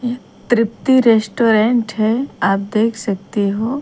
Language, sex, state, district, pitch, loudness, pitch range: Hindi, female, Himachal Pradesh, Shimla, 225 Hz, -16 LUFS, 215-240 Hz